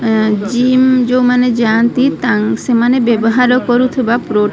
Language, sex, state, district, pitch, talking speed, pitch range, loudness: Odia, female, Odisha, Sambalpur, 240 Hz, 130 wpm, 225-250 Hz, -12 LUFS